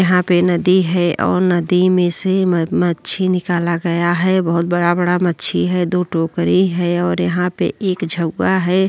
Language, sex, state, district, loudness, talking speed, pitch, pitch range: Hindi, female, Uttar Pradesh, Jyotiba Phule Nagar, -16 LUFS, 170 wpm, 175 Hz, 170-185 Hz